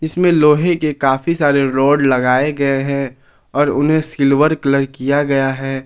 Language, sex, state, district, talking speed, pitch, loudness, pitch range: Hindi, male, Jharkhand, Ranchi, 165 wpm, 140 Hz, -15 LUFS, 135-150 Hz